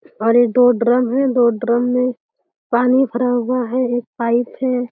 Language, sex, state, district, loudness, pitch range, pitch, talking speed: Hindi, female, Uttar Pradesh, Deoria, -17 LUFS, 240-250 Hz, 245 Hz, 185 wpm